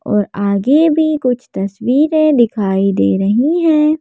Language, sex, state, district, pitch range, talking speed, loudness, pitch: Hindi, female, Madhya Pradesh, Bhopal, 200-305 Hz, 135 wpm, -14 LUFS, 245 Hz